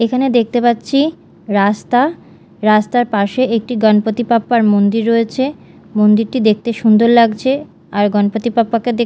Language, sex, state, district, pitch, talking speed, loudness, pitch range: Bengali, female, Odisha, Malkangiri, 230 Hz, 125 wpm, -14 LUFS, 215-245 Hz